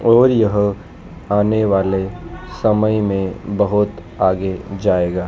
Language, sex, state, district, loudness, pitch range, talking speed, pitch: Hindi, male, Madhya Pradesh, Dhar, -17 LUFS, 95-105 Hz, 100 wpm, 100 Hz